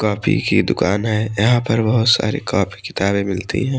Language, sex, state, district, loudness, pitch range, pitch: Hindi, male, Odisha, Malkangiri, -18 LUFS, 100-115 Hz, 110 Hz